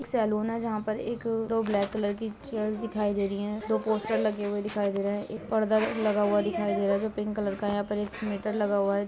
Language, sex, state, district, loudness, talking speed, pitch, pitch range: Hindi, female, Uttar Pradesh, Ghazipur, -29 LUFS, 275 wpm, 210 Hz, 205-220 Hz